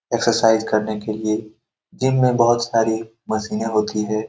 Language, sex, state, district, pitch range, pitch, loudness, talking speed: Hindi, male, Bihar, Saran, 110-120 Hz, 110 Hz, -20 LUFS, 155 wpm